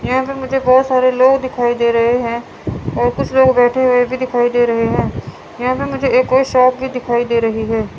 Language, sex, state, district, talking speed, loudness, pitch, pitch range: Hindi, female, Chandigarh, Chandigarh, 225 wpm, -15 LUFS, 255 Hz, 240-260 Hz